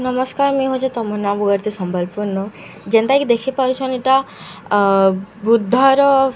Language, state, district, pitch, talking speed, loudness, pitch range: Sambalpuri, Odisha, Sambalpur, 230 Hz, 160 wpm, -17 LUFS, 200-265 Hz